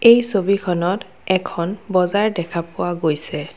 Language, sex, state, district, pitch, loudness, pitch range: Assamese, female, Assam, Kamrup Metropolitan, 185 Hz, -19 LUFS, 175-200 Hz